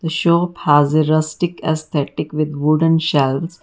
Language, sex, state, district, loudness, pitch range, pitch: English, female, Karnataka, Bangalore, -17 LUFS, 150-165 Hz, 155 Hz